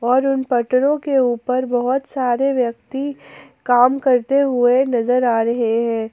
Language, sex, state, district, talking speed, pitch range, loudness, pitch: Hindi, female, Jharkhand, Ranchi, 145 wpm, 240-270 Hz, -18 LUFS, 250 Hz